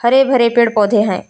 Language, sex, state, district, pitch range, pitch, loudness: Hindi, female, Jharkhand, Palamu, 210-245 Hz, 235 Hz, -13 LUFS